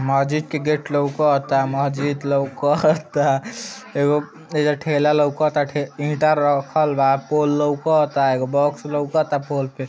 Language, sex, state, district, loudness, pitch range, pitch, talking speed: Bhojpuri, male, Uttar Pradesh, Ghazipur, -20 LUFS, 140-150 Hz, 145 Hz, 135 wpm